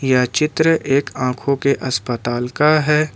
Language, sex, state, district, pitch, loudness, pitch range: Hindi, male, Jharkhand, Ranchi, 140 Hz, -18 LUFS, 125-150 Hz